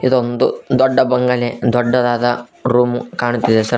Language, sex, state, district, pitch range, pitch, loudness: Kannada, male, Karnataka, Koppal, 120-125 Hz, 120 Hz, -16 LUFS